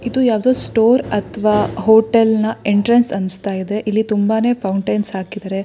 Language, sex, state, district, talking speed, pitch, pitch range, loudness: Kannada, female, Karnataka, Shimoga, 125 wpm, 215 Hz, 200-230 Hz, -16 LUFS